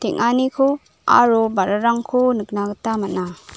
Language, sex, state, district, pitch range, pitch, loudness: Garo, female, Meghalaya, South Garo Hills, 205-250 Hz, 225 Hz, -18 LUFS